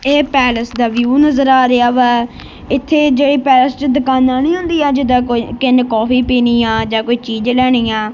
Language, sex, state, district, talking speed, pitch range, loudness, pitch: Punjabi, female, Punjab, Kapurthala, 200 wpm, 240-270 Hz, -13 LUFS, 255 Hz